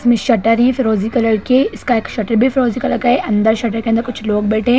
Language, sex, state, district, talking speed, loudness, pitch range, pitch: Hindi, female, Bihar, Jamui, 275 wpm, -15 LUFS, 220-245 Hz, 230 Hz